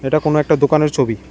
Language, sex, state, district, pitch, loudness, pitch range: Bengali, male, Tripura, West Tripura, 150 Hz, -15 LUFS, 135-155 Hz